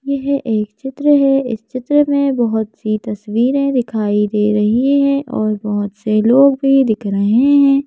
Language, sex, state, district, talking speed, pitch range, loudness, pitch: Hindi, female, Madhya Pradesh, Bhopal, 170 wpm, 215-275 Hz, -15 LUFS, 240 Hz